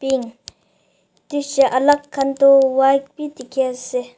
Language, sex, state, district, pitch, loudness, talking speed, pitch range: Nagamese, female, Nagaland, Dimapur, 270 Hz, -17 LUFS, 115 wpm, 255-275 Hz